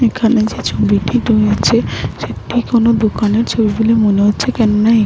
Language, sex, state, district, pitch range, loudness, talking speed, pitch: Bengali, female, West Bengal, Malda, 210-230 Hz, -14 LUFS, 155 wpm, 220 Hz